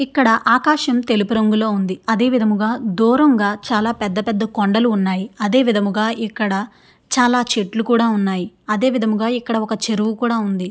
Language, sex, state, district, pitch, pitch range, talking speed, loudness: Telugu, female, Andhra Pradesh, Srikakulam, 220 Hz, 210-240 Hz, 150 wpm, -17 LUFS